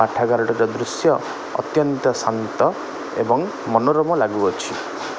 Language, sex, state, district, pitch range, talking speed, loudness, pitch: Odia, male, Odisha, Khordha, 115-140 Hz, 80 wpm, -20 LUFS, 115 Hz